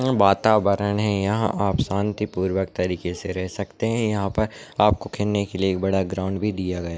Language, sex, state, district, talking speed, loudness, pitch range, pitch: Hindi, male, Maharashtra, Solapur, 205 wpm, -23 LUFS, 95-105 Hz, 100 Hz